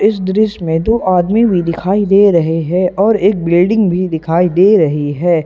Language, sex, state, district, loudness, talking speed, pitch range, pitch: Hindi, male, Jharkhand, Ranchi, -12 LUFS, 200 wpm, 170-205 Hz, 180 Hz